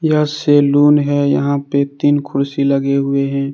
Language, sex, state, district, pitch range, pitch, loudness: Hindi, male, Jharkhand, Deoghar, 140-145 Hz, 140 Hz, -15 LUFS